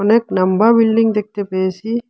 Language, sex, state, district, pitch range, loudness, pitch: Bengali, male, Assam, Hailakandi, 195-225 Hz, -15 LUFS, 215 Hz